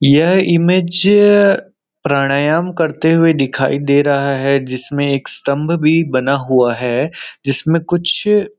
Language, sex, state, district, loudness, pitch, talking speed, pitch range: Hindi, male, Chhattisgarh, Rajnandgaon, -14 LUFS, 150 Hz, 140 wpm, 140-175 Hz